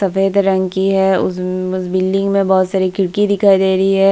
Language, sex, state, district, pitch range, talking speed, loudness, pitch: Hindi, female, Bihar, Kishanganj, 185-195 Hz, 220 wpm, -15 LUFS, 190 Hz